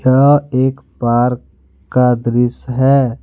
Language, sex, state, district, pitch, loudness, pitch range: Hindi, male, Jharkhand, Ranchi, 125 Hz, -14 LUFS, 120-130 Hz